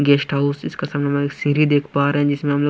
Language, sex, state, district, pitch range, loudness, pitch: Hindi, male, Punjab, Pathankot, 140-145 Hz, -19 LUFS, 145 Hz